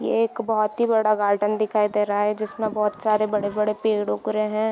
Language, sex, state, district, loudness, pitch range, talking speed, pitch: Hindi, female, Bihar, Gopalganj, -22 LUFS, 210-220 Hz, 230 wpm, 215 Hz